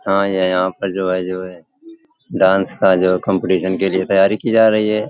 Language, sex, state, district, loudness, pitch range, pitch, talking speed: Hindi, male, Uttar Pradesh, Hamirpur, -16 LUFS, 95-105 Hz, 95 Hz, 140 wpm